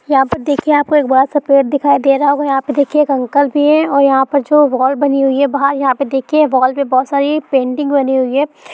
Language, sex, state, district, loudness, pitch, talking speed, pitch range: Hindi, female, Bihar, Sitamarhi, -13 LUFS, 280 Hz, 270 wpm, 270-290 Hz